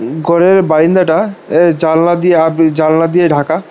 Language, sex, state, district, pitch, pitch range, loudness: Bengali, male, Tripura, West Tripura, 165 Hz, 160-175 Hz, -10 LUFS